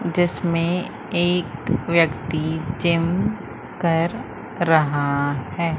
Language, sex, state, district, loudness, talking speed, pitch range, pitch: Hindi, female, Madhya Pradesh, Umaria, -21 LUFS, 70 wpm, 155-175 Hz, 165 Hz